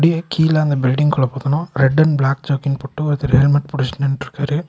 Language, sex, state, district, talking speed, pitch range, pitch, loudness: Tamil, male, Tamil Nadu, Nilgiris, 180 wpm, 135-155 Hz, 140 Hz, -17 LUFS